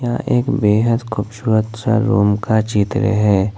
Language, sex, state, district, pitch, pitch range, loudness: Hindi, male, Jharkhand, Ranchi, 110 Hz, 105-115 Hz, -17 LUFS